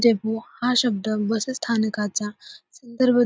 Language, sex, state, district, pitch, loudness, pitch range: Marathi, female, Maharashtra, Solapur, 230 Hz, -23 LUFS, 215-245 Hz